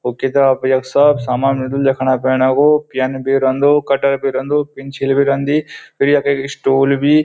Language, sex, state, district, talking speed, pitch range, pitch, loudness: Garhwali, male, Uttarakhand, Uttarkashi, 190 wpm, 130-140 Hz, 135 Hz, -15 LUFS